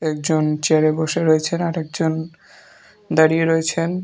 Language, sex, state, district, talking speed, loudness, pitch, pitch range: Bengali, male, Tripura, Unakoti, 120 wpm, -19 LUFS, 160 Hz, 155-165 Hz